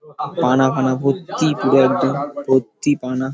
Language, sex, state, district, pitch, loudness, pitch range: Bengali, male, West Bengal, Paschim Medinipur, 135 Hz, -18 LUFS, 130-145 Hz